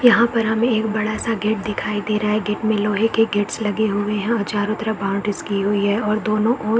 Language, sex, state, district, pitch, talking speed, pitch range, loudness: Hindi, female, Bihar, East Champaran, 215 Hz, 255 wpm, 205-220 Hz, -20 LUFS